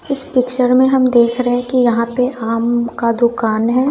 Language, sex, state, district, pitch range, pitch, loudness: Hindi, female, Bihar, West Champaran, 235-255 Hz, 245 Hz, -15 LUFS